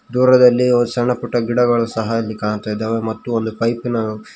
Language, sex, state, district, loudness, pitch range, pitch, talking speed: Kannada, male, Karnataka, Koppal, -17 LUFS, 110-120 Hz, 115 Hz, 195 wpm